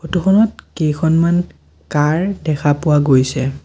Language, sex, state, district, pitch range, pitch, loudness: Assamese, male, Assam, Sonitpur, 145-175 Hz, 155 Hz, -16 LUFS